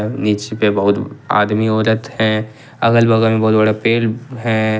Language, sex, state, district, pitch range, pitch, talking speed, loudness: Hindi, male, Jharkhand, Ranchi, 110-115 Hz, 110 Hz, 160 wpm, -15 LUFS